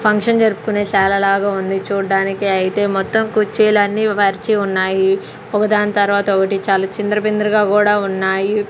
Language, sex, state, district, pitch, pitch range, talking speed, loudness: Telugu, female, Andhra Pradesh, Sri Satya Sai, 205 Hz, 195-210 Hz, 115 wpm, -16 LUFS